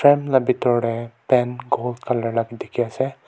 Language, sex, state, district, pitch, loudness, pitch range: Nagamese, male, Nagaland, Kohima, 125 Hz, -21 LUFS, 115-130 Hz